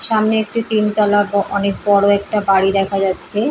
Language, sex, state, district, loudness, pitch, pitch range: Bengali, female, West Bengal, Paschim Medinipur, -15 LUFS, 205 Hz, 200-215 Hz